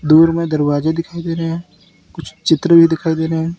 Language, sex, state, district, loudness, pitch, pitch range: Hindi, male, Uttar Pradesh, Lalitpur, -15 LUFS, 165 Hz, 160-170 Hz